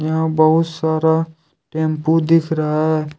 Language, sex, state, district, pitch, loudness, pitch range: Hindi, male, Jharkhand, Deoghar, 160 Hz, -17 LUFS, 155-160 Hz